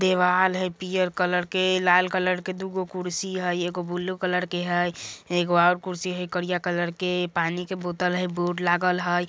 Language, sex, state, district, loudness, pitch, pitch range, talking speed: Bajjika, female, Bihar, Vaishali, -25 LUFS, 180 Hz, 175-185 Hz, 200 wpm